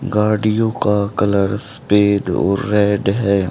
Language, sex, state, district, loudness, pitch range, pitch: Hindi, male, Haryana, Charkhi Dadri, -16 LUFS, 100-110 Hz, 105 Hz